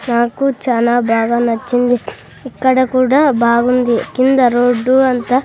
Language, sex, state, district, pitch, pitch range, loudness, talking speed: Telugu, female, Andhra Pradesh, Sri Satya Sai, 245 Hz, 235-260 Hz, -13 LUFS, 110 wpm